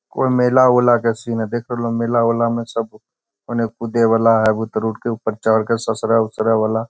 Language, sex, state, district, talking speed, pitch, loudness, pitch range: Magahi, male, Bihar, Gaya, 225 wpm, 115 Hz, -17 LUFS, 110-115 Hz